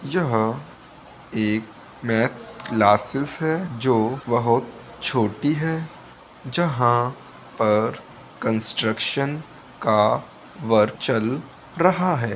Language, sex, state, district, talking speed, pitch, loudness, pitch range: Hindi, male, Bihar, Saharsa, 85 wpm, 125 Hz, -22 LUFS, 110-150 Hz